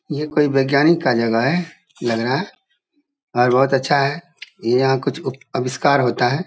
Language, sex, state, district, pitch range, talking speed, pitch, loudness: Hindi, male, Bihar, Saharsa, 125-155 Hz, 165 wpm, 135 Hz, -18 LUFS